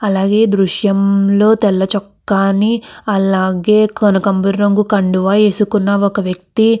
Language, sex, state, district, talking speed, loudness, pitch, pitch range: Telugu, female, Andhra Pradesh, Krishna, 130 wpm, -13 LUFS, 200 Hz, 195-210 Hz